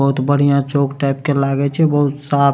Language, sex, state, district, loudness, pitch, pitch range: Maithili, male, Bihar, Supaul, -16 LUFS, 140 Hz, 140-145 Hz